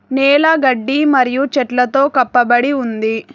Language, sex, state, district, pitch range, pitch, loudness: Telugu, female, Telangana, Hyderabad, 245-280 Hz, 265 Hz, -13 LUFS